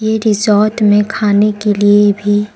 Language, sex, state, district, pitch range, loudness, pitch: Hindi, female, Arunachal Pradesh, Lower Dibang Valley, 205-215 Hz, -12 LUFS, 210 Hz